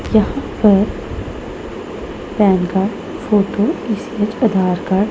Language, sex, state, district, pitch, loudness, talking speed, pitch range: Hindi, female, Punjab, Pathankot, 205 Hz, -17 LUFS, 80 wpm, 190-215 Hz